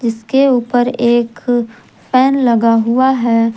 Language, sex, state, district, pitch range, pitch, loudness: Hindi, female, Jharkhand, Garhwa, 230-255 Hz, 240 Hz, -13 LUFS